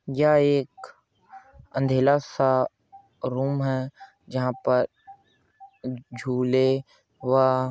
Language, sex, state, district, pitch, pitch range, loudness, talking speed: Hindi, male, Chhattisgarh, Korba, 135 Hz, 130-150 Hz, -24 LUFS, 85 wpm